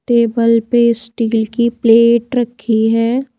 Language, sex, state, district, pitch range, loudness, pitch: Hindi, female, Madhya Pradesh, Bhopal, 230-235 Hz, -14 LUFS, 235 Hz